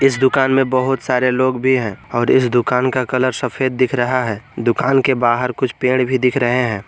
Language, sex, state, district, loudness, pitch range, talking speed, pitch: Hindi, male, Jharkhand, Garhwa, -16 LUFS, 120-130 Hz, 235 wpm, 130 Hz